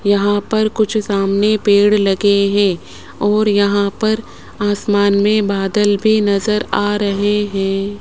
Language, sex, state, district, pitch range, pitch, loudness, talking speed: Hindi, male, Rajasthan, Jaipur, 200-210 Hz, 205 Hz, -15 LUFS, 135 wpm